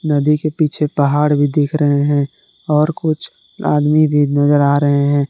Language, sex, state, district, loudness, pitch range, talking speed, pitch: Hindi, male, Jharkhand, Garhwa, -15 LUFS, 145-155 Hz, 180 wpm, 145 Hz